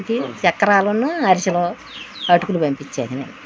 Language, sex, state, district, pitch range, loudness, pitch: Telugu, female, Andhra Pradesh, Guntur, 175-205 Hz, -18 LUFS, 185 Hz